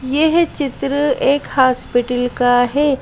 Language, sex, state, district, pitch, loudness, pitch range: Hindi, female, Madhya Pradesh, Bhopal, 275 Hz, -16 LUFS, 245-290 Hz